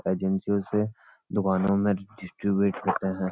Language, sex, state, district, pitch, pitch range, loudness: Hindi, male, Uttarakhand, Uttarkashi, 100 Hz, 95-100 Hz, -27 LUFS